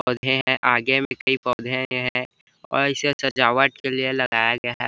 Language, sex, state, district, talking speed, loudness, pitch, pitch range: Hindi, male, Chhattisgarh, Bilaspur, 160 wpm, -21 LUFS, 130 Hz, 125-135 Hz